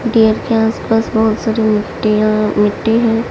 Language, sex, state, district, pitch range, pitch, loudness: Hindi, female, Delhi, New Delhi, 215-225 Hz, 220 Hz, -14 LUFS